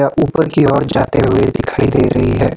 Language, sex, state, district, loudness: Hindi, male, Maharashtra, Gondia, -14 LUFS